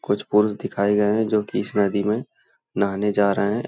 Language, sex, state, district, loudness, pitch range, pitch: Hindi, male, Uttar Pradesh, Hamirpur, -22 LUFS, 100-105 Hz, 105 Hz